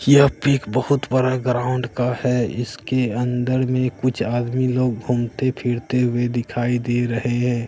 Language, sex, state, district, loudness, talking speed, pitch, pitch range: Hindi, male, Bihar, Katihar, -21 LUFS, 155 wpm, 125 Hz, 120-130 Hz